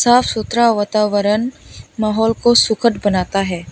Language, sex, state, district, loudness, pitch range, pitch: Hindi, female, Tripura, West Tripura, -16 LUFS, 205-235 Hz, 220 Hz